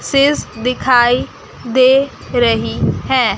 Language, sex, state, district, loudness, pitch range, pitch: Hindi, female, Chandigarh, Chandigarh, -14 LUFS, 240-270 Hz, 255 Hz